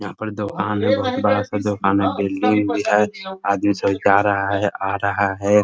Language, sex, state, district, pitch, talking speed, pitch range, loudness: Hindi, male, Bihar, Muzaffarpur, 100 Hz, 215 wpm, 100-105 Hz, -19 LUFS